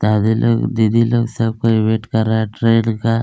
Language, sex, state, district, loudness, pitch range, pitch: Hindi, male, Chhattisgarh, Kabirdham, -16 LUFS, 110-115 Hz, 115 Hz